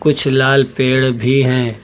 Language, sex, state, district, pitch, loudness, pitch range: Hindi, male, Uttar Pradesh, Lucknow, 130 Hz, -14 LUFS, 130-135 Hz